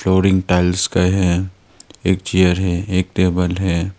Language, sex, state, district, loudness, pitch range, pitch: Hindi, male, Arunachal Pradesh, Longding, -17 LUFS, 90-95 Hz, 95 Hz